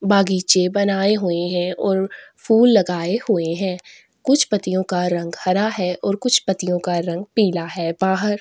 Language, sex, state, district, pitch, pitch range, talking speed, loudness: Hindi, female, Chhattisgarh, Korba, 190 Hz, 180-205 Hz, 165 wpm, -19 LUFS